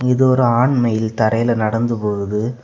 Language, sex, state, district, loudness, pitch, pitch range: Tamil, male, Tamil Nadu, Kanyakumari, -17 LUFS, 115 Hz, 110-125 Hz